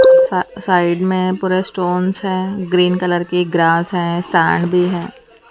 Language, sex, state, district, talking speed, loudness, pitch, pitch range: Hindi, female, Haryana, Charkhi Dadri, 150 wpm, -16 LUFS, 180 Hz, 175-190 Hz